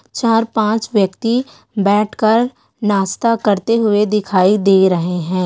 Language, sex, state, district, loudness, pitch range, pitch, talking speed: Hindi, female, Chhattisgarh, Korba, -15 LUFS, 195-225 Hz, 210 Hz, 130 wpm